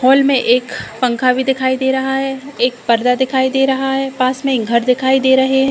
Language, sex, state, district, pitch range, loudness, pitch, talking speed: Hindi, female, Uttar Pradesh, Deoria, 250-265 Hz, -15 LUFS, 260 Hz, 240 wpm